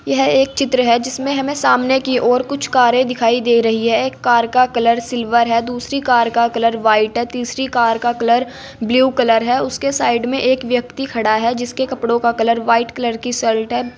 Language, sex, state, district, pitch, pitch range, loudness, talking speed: Hindi, female, Uttar Pradesh, Saharanpur, 240 Hz, 230-255 Hz, -16 LUFS, 210 wpm